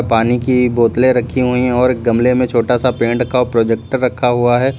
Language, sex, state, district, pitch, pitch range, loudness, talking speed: Hindi, male, Uttar Pradesh, Lucknow, 125 Hz, 115-125 Hz, -14 LUFS, 225 wpm